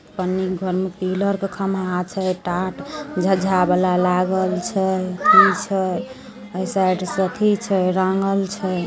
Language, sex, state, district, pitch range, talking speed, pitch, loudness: Maithili, female, Bihar, Samastipur, 185-195 Hz, 135 wpm, 185 Hz, -20 LUFS